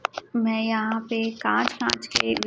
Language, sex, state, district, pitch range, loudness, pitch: Hindi, female, Chhattisgarh, Raipur, 220-230 Hz, -25 LUFS, 225 Hz